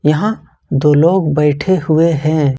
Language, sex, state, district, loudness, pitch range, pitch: Hindi, male, Jharkhand, Ranchi, -13 LUFS, 150-170 Hz, 155 Hz